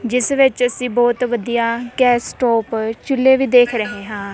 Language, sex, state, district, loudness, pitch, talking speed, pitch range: Punjabi, female, Punjab, Kapurthala, -16 LUFS, 240 Hz, 165 wpm, 230-250 Hz